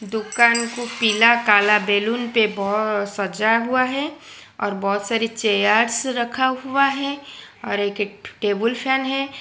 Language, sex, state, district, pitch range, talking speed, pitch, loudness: Hindi, female, Gujarat, Valsad, 210-255 Hz, 135 wpm, 230 Hz, -20 LUFS